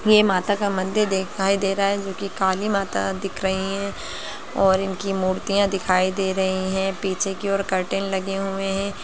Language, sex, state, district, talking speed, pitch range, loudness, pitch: Hindi, female, Bihar, Gaya, 185 wpm, 190-200 Hz, -23 LUFS, 195 Hz